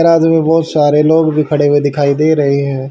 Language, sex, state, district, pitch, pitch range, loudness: Hindi, male, Haryana, Charkhi Dadri, 150 Hz, 145-160 Hz, -12 LUFS